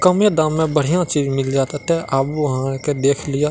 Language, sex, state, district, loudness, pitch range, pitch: Maithili, male, Bihar, Madhepura, -18 LUFS, 135-160 Hz, 145 Hz